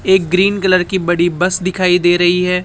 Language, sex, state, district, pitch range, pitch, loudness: Hindi, male, Rajasthan, Jaipur, 175-185 Hz, 180 Hz, -13 LUFS